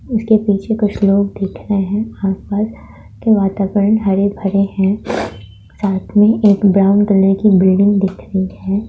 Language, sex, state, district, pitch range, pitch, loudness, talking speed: Hindi, female, Bihar, Madhepura, 195-210 Hz, 200 Hz, -14 LUFS, 150 wpm